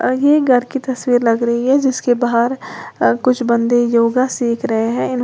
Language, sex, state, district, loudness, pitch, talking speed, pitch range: Hindi, female, Uttar Pradesh, Lalitpur, -15 LUFS, 245 Hz, 195 wpm, 235-260 Hz